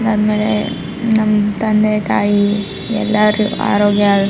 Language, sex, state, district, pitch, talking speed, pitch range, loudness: Kannada, female, Karnataka, Raichur, 210 Hz, 110 wpm, 205-215 Hz, -15 LUFS